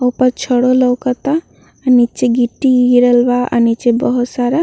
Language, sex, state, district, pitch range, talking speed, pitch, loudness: Bhojpuri, female, Uttar Pradesh, Ghazipur, 245-255 Hz, 130 wpm, 250 Hz, -13 LUFS